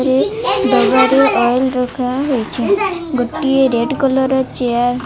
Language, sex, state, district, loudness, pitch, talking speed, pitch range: Odia, female, Odisha, Malkangiri, -15 LUFS, 265 Hz, 140 wpm, 250-270 Hz